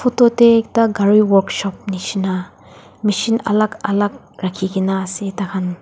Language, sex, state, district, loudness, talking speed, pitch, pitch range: Nagamese, female, Nagaland, Dimapur, -17 LUFS, 135 wpm, 200 Hz, 190-220 Hz